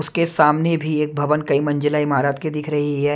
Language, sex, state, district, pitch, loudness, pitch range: Hindi, male, Maharashtra, Mumbai Suburban, 150 Hz, -19 LUFS, 145-155 Hz